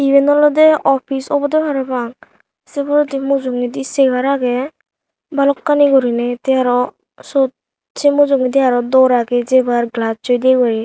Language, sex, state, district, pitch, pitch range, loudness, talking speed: Chakma, female, Tripura, Unakoti, 270 Hz, 245-285 Hz, -15 LUFS, 140 wpm